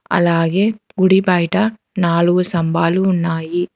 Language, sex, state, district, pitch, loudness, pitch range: Telugu, female, Telangana, Hyderabad, 175 Hz, -16 LUFS, 170-190 Hz